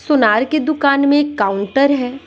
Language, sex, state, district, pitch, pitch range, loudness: Hindi, female, Bihar, West Champaran, 275 Hz, 245-290 Hz, -15 LUFS